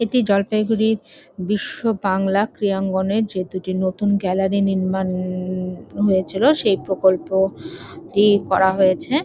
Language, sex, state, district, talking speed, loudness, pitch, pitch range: Bengali, female, West Bengal, Jalpaiguri, 95 wpm, -19 LUFS, 195 Hz, 190-210 Hz